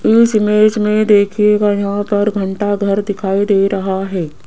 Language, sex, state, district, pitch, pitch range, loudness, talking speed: Hindi, female, Rajasthan, Jaipur, 205 Hz, 195-210 Hz, -14 LUFS, 145 wpm